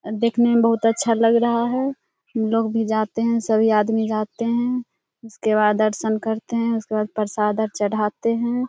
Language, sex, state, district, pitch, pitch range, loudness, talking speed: Hindi, female, Bihar, Samastipur, 225 Hz, 215-235 Hz, -21 LUFS, 180 wpm